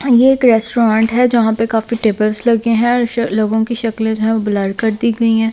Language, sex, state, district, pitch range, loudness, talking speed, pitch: Hindi, female, Delhi, New Delhi, 220-235 Hz, -14 LUFS, 230 wpm, 225 Hz